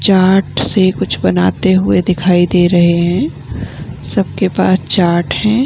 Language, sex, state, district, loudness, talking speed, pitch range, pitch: Hindi, female, Bihar, Vaishali, -12 LUFS, 160 wpm, 170-190 Hz, 175 Hz